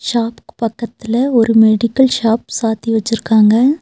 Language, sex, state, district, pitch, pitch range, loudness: Tamil, female, Tamil Nadu, Nilgiris, 230 Hz, 225-240 Hz, -14 LUFS